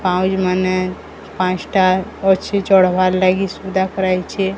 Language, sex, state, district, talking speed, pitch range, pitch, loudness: Odia, male, Odisha, Sambalpur, 105 wpm, 185-190 Hz, 185 Hz, -17 LUFS